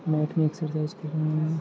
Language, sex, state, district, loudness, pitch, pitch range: Hindi, male, Jharkhand, Jamtara, -27 LUFS, 155 Hz, 155-160 Hz